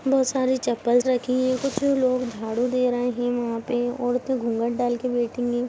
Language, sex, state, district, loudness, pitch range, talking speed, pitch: Hindi, female, Jharkhand, Jamtara, -24 LUFS, 240-255 Hz, 200 wpm, 245 Hz